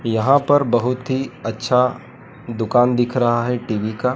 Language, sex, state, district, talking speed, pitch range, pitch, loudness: Hindi, male, Madhya Pradesh, Dhar, 160 wpm, 115-125 Hz, 125 Hz, -18 LUFS